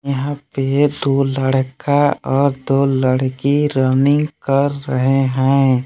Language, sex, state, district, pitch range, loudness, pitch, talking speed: Hindi, male, Jharkhand, Palamu, 130-140 Hz, -16 LUFS, 135 Hz, 110 wpm